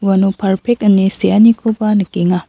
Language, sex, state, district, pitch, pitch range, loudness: Garo, female, Meghalaya, South Garo Hills, 200 Hz, 190-220 Hz, -13 LUFS